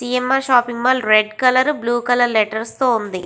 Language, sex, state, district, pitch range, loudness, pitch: Telugu, female, Andhra Pradesh, Visakhapatnam, 220-255 Hz, -16 LUFS, 245 Hz